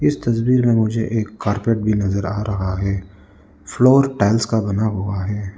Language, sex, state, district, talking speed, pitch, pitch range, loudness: Hindi, male, Arunachal Pradesh, Lower Dibang Valley, 170 wpm, 105 Hz, 95-115 Hz, -19 LUFS